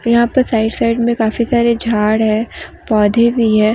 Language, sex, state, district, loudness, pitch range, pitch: Hindi, female, Jharkhand, Deoghar, -14 LUFS, 220-235 Hz, 230 Hz